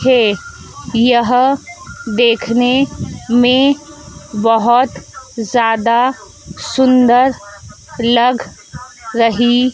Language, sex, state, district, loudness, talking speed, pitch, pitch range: Hindi, female, Madhya Pradesh, Dhar, -13 LUFS, 55 wpm, 245 Hz, 235-260 Hz